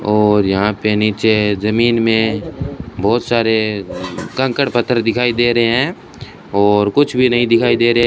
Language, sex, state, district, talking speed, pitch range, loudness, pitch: Hindi, male, Rajasthan, Bikaner, 165 wpm, 105-120 Hz, -15 LUFS, 115 Hz